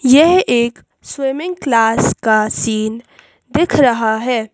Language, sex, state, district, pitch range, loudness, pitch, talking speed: Hindi, female, Madhya Pradesh, Bhopal, 225-280 Hz, -15 LUFS, 240 Hz, 120 wpm